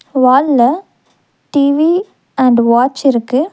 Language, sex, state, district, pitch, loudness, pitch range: Tamil, female, Tamil Nadu, Nilgiris, 270 Hz, -12 LUFS, 250-295 Hz